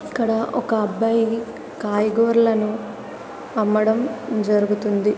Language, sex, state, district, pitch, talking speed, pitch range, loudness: Telugu, female, Andhra Pradesh, Visakhapatnam, 225 Hz, 70 wpm, 210-230 Hz, -20 LUFS